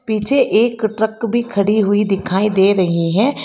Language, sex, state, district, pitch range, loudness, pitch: Hindi, female, Karnataka, Bangalore, 200-230 Hz, -15 LUFS, 215 Hz